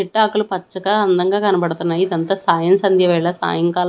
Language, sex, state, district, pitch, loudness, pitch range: Telugu, female, Andhra Pradesh, Annamaya, 185 Hz, -17 LUFS, 175-195 Hz